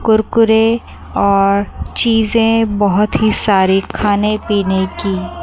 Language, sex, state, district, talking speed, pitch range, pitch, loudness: Hindi, female, Chandigarh, Chandigarh, 100 wpm, 195-220 Hz, 210 Hz, -14 LUFS